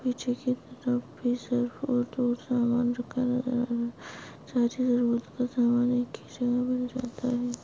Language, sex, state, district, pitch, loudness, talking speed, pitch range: Hindi, female, Maharashtra, Solapur, 245 Hz, -29 LUFS, 150 wpm, 245-250 Hz